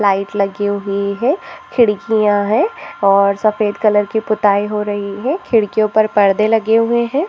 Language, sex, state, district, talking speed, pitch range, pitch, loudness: Hindi, female, Maharashtra, Nagpur, 165 wpm, 205-225 Hz, 210 Hz, -15 LUFS